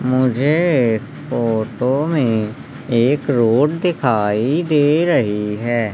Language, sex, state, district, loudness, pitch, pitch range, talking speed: Hindi, male, Madhya Pradesh, Umaria, -17 LUFS, 130 Hz, 115-150 Hz, 90 wpm